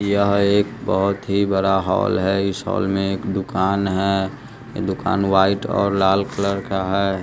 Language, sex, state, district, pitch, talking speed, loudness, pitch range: Hindi, male, Bihar, West Champaran, 100 Hz, 165 wpm, -20 LUFS, 95-100 Hz